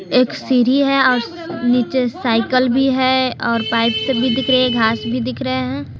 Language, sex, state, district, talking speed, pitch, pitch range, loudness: Hindi, female, Bihar, West Champaran, 190 wpm, 250 Hz, 230-260 Hz, -16 LUFS